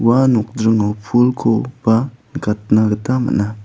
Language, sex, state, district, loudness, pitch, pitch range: Garo, male, Meghalaya, South Garo Hills, -16 LUFS, 115 Hz, 105-125 Hz